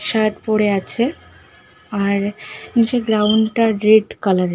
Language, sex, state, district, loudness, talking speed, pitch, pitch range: Bengali, female, West Bengal, Malda, -17 LUFS, 120 wpm, 215 Hz, 205-225 Hz